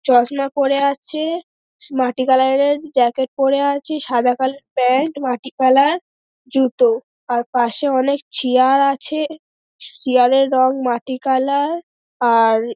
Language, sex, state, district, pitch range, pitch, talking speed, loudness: Bengali, female, West Bengal, Dakshin Dinajpur, 255-285 Hz, 270 Hz, 130 wpm, -17 LUFS